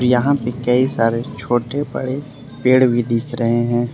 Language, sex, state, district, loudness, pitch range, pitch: Hindi, male, Arunachal Pradesh, Lower Dibang Valley, -18 LUFS, 120-130 Hz, 125 Hz